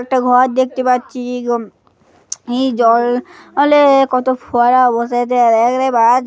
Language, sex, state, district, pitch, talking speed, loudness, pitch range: Bengali, female, West Bengal, Paschim Medinipur, 250 Hz, 115 wpm, -14 LUFS, 240-260 Hz